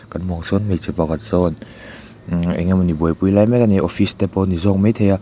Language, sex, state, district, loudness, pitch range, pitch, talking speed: Mizo, male, Mizoram, Aizawl, -18 LUFS, 85-105 Hz, 95 Hz, 240 wpm